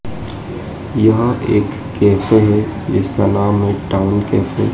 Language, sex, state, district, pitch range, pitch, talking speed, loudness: Hindi, male, Madhya Pradesh, Dhar, 100-110 Hz, 105 Hz, 100 wpm, -15 LUFS